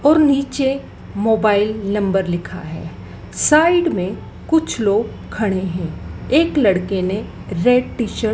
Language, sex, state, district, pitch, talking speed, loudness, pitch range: Hindi, female, Madhya Pradesh, Dhar, 220 Hz, 135 wpm, -18 LUFS, 195-280 Hz